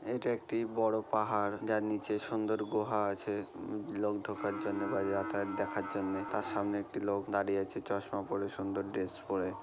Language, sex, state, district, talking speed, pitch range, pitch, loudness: Bengali, male, West Bengal, North 24 Parganas, 175 wpm, 100-105 Hz, 100 Hz, -35 LUFS